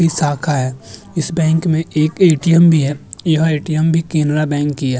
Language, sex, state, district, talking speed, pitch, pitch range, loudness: Hindi, male, Uttar Pradesh, Jyotiba Phule Nagar, 205 wpm, 155 Hz, 145-165 Hz, -15 LUFS